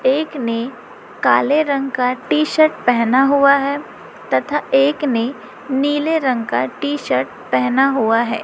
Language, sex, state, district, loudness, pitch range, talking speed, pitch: Hindi, female, Chhattisgarh, Raipur, -17 LUFS, 240-290 Hz, 150 wpm, 270 Hz